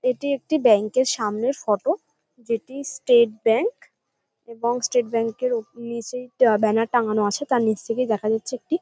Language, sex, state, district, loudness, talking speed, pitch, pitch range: Bengali, female, West Bengal, North 24 Parganas, -22 LUFS, 170 wpm, 235 Hz, 220-255 Hz